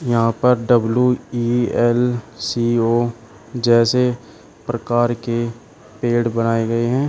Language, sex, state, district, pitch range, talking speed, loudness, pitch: Hindi, male, Uttar Pradesh, Shamli, 115-120 Hz, 120 wpm, -18 LUFS, 120 Hz